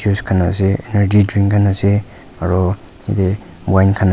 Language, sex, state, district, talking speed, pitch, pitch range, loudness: Nagamese, male, Nagaland, Kohima, 160 wpm, 100 Hz, 95-100 Hz, -15 LUFS